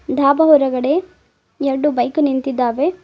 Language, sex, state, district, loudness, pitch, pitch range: Kannada, female, Karnataka, Bidar, -16 LUFS, 285 Hz, 265-305 Hz